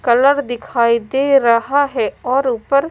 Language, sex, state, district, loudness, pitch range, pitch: Hindi, female, Punjab, Kapurthala, -15 LUFS, 235-275 Hz, 265 Hz